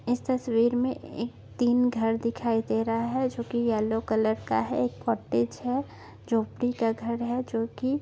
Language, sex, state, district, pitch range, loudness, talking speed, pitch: Hindi, female, Maharashtra, Nagpur, 225-245 Hz, -28 LUFS, 180 wpm, 235 Hz